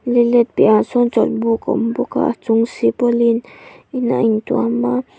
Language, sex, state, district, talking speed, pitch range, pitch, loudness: Mizo, female, Mizoram, Aizawl, 195 wpm, 215-240 Hz, 230 Hz, -16 LUFS